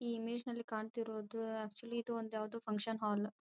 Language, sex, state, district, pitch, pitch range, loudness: Kannada, female, Karnataka, Dharwad, 225 Hz, 215-235 Hz, -42 LUFS